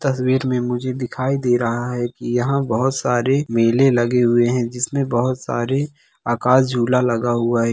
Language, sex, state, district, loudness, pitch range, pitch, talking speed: Hindi, male, Bihar, Darbhanga, -19 LUFS, 120-130 Hz, 125 Hz, 180 wpm